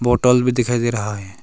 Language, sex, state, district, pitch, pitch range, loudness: Hindi, male, Arunachal Pradesh, Longding, 120 Hz, 105-125 Hz, -18 LUFS